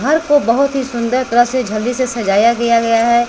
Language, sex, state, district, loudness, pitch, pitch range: Hindi, female, Bihar, West Champaran, -14 LUFS, 240 Hz, 230-260 Hz